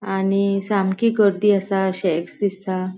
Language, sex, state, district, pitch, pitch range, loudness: Konkani, female, Goa, North and South Goa, 195 Hz, 190-200 Hz, -20 LUFS